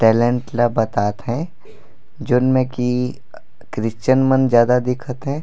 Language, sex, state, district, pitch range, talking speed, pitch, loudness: Chhattisgarhi, male, Chhattisgarh, Raigarh, 115-130 Hz, 135 wpm, 125 Hz, -18 LUFS